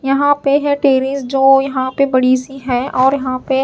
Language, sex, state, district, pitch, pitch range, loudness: Hindi, female, Chhattisgarh, Raipur, 270 Hz, 260-275 Hz, -14 LUFS